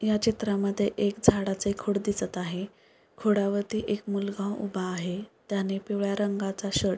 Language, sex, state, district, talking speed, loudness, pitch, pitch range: Marathi, female, Maharashtra, Pune, 145 wpm, -29 LUFS, 200 Hz, 195-205 Hz